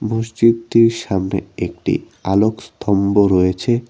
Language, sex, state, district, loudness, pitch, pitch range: Bengali, male, West Bengal, Cooch Behar, -17 LUFS, 110 Hz, 95-115 Hz